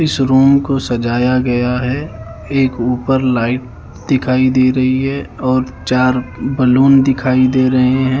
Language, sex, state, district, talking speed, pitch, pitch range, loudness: Hindi, male, Haryana, Charkhi Dadri, 145 wpm, 130 Hz, 125-135 Hz, -14 LUFS